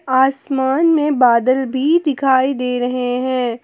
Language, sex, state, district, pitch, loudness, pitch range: Hindi, female, Jharkhand, Palamu, 260 Hz, -16 LUFS, 250-275 Hz